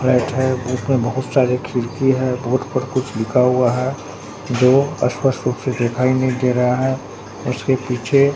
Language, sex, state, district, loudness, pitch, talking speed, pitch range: Hindi, male, Bihar, Katihar, -18 LUFS, 130 Hz, 170 wpm, 125-130 Hz